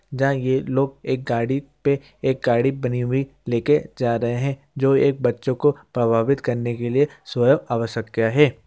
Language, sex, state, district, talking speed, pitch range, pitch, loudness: Hindi, male, Chhattisgarh, Jashpur, 185 wpm, 120-140 Hz, 130 Hz, -21 LUFS